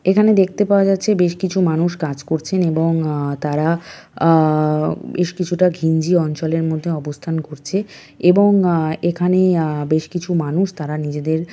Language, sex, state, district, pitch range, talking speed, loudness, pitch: Bengali, female, West Bengal, North 24 Parganas, 155-180 Hz, 145 wpm, -18 LUFS, 165 Hz